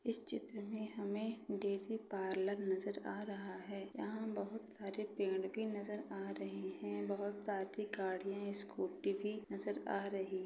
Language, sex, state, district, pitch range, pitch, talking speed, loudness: Hindi, female, Bihar, Gopalganj, 190-210 Hz, 200 Hz, 155 wpm, -43 LUFS